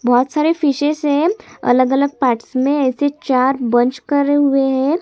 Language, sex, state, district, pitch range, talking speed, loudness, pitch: Hindi, female, Chhattisgarh, Sukma, 255-290 Hz, 190 wpm, -16 LUFS, 275 Hz